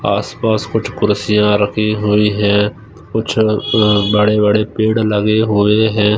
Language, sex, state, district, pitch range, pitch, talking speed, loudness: Hindi, male, Punjab, Fazilka, 105-110 Hz, 105 Hz, 115 wpm, -14 LUFS